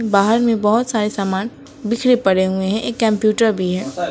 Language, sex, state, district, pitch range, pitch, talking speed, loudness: Hindi, female, West Bengal, Alipurduar, 190-230 Hz, 215 Hz, 190 wpm, -17 LUFS